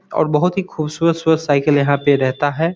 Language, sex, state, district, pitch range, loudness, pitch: Hindi, male, Bihar, Samastipur, 145-165 Hz, -17 LUFS, 155 Hz